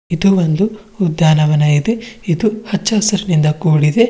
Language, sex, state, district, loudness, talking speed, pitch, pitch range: Kannada, female, Karnataka, Bidar, -14 LUFS, 100 wpm, 190 Hz, 155-215 Hz